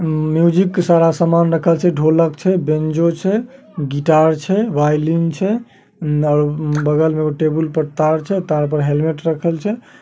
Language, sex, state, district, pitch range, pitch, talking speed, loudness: Magahi, male, Bihar, Samastipur, 155-175 Hz, 160 Hz, 170 wpm, -16 LUFS